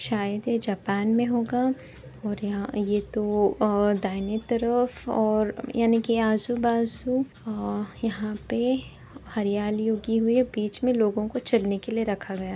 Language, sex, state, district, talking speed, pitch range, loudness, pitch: Hindi, female, Uttar Pradesh, Etah, 145 wpm, 205-235 Hz, -26 LUFS, 220 Hz